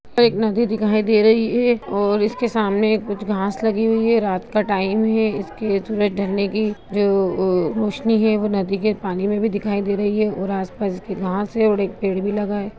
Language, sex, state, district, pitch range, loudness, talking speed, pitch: Hindi, female, Bihar, Begusarai, 200-220 Hz, -20 LUFS, 225 wpm, 210 Hz